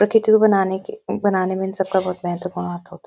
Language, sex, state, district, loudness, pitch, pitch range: Hindi, female, Uttarakhand, Uttarkashi, -20 LUFS, 190 Hz, 180-210 Hz